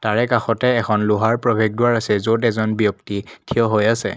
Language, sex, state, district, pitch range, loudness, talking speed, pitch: Assamese, male, Assam, Kamrup Metropolitan, 105-115 Hz, -18 LUFS, 170 wpm, 110 Hz